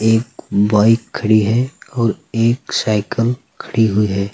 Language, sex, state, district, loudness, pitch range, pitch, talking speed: Hindi, male, Uttar Pradesh, Saharanpur, -16 LUFS, 105-115 Hz, 110 Hz, 140 wpm